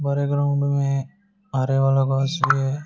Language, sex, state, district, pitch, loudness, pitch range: Hindi, male, Uttar Pradesh, Shamli, 140 Hz, -21 LUFS, 135-145 Hz